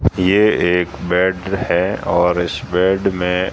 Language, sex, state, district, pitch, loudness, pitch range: Hindi, male, Rajasthan, Jaisalmer, 90 Hz, -17 LUFS, 90-95 Hz